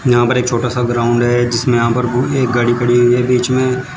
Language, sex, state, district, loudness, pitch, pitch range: Hindi, male, Uttar Pradesh, Shamli, -14 LUFS, 120 Hz, 120-125 Hz